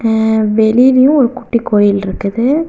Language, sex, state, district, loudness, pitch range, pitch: Tamil, female, Tamil Nadu, Kanyakumari, -12 LUFS, 215-255 Hz, 230 Hz